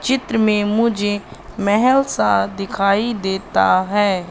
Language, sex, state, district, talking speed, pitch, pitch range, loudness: Hindi, female, Madhya Pradesh, Katni, 110 wpm, 205 Hz, 190-225 Hz, -17 LUFS